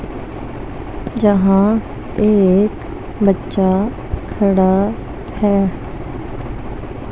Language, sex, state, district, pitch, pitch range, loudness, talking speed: Hindi, female, Punjab, Pathankot, 200 Hz, 190-210 Hz, -16 LUFS, 50 wpm